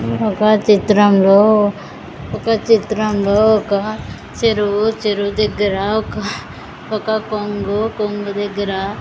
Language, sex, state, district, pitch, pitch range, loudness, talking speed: Telugu, female, Andhra Pradesh, Sri Satya Sai, 210 Hz, 200-215 Hz, -16 LUFS, 85 wpm